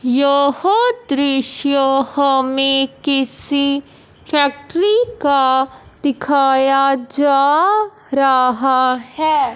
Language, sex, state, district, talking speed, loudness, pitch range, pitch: Hindi, male, Punjab, Fazilka, 65 wpm, -15 LUFS, 270-290 Hz, 280 Hz